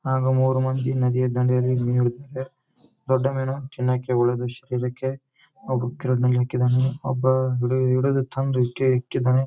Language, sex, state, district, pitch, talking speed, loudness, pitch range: Kannada, male, Karnataka, Bijapur, 130 Hz, 110 wpm, -23 LUFS, 125-130 Hz